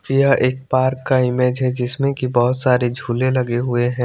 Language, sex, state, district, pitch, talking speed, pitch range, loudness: Hindi, male, Chandigarh, Chandigarh, 125 Hz, 205 wpm, 125-130 Hz, -18 LUFS